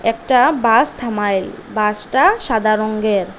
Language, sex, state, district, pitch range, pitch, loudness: Bengali, female, Assam, Hailakandi, 210-240 Hz, 220 Hz, -15 LUFS